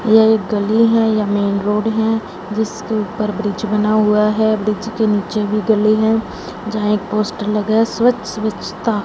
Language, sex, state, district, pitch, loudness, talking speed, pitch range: Hindi, female, Punjab, Fazilka, 215 Hz, -17 LUFS, 170 wpm, 210-220 Hz